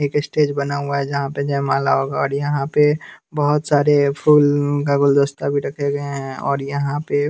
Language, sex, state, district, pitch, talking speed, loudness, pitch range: Hindi, male, Bihar, West Champaran, 140 Hz, 195 wpm, -19 LUFS, 140-145 Hz